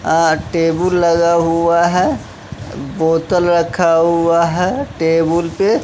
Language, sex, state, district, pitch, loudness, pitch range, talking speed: Hindi, male, Bihar, West Champaran, 170 Hz, -14 LUFS, 165-170 Hz, 115 wpm